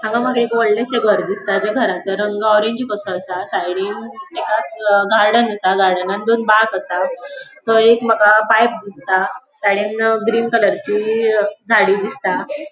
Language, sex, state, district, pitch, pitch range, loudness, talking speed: Konkani, female, Goa, North and South Goa, 215 Hz, 200-230 Hz, -16 LUFS, 145 wpm